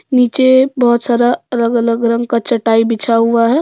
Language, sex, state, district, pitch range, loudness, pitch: Hindi, female, Jharkhand, Deoghar, 230-250 Hz, -13 LUFS, 235 Hz